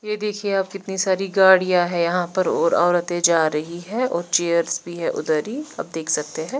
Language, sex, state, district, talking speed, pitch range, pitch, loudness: Hindi, female, Chandigarh, Chandigarh, 220 wpm, 170-195 Hz, 175 Hz, -21 LUFS